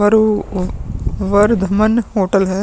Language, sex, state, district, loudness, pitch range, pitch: Hindi, male, Uttar Pradesh, Muzaffarnagar, -16 LUFS, 195-215 Hz, 205 Hz